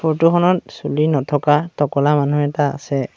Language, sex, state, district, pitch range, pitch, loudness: Assamese, male, Assam, Sonitpur, 145-160 Hz, 145 Hz, -17 LUFS